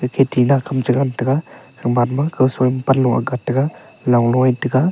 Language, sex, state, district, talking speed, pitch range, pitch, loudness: Wancho, male, Arunachal Pradesh, Longding, 170 wpm, 125-135 Hz, 130 Hz, -17 LUFS